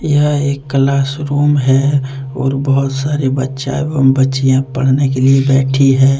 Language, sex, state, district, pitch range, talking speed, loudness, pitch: Hindi, male, Jharkhand, Deoghar, 135-140 Hz, 155 wpm, -13 LUFS, 135 Hz